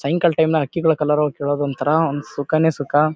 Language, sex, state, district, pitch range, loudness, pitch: Kannada, male, Karnataka, Bijapur, 145-160 Hz, -19 LUFS, 150 Hz